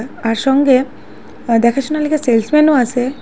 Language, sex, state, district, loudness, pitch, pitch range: Bengali, female, Assam, Hailakandi, -14 LUFS, 260 Hz, 235-285 Hz